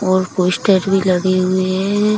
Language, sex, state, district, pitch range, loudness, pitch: Hindi, female, Bihar, Kishanganj, 185-195 Hz, -16 LUFS, 185 Hz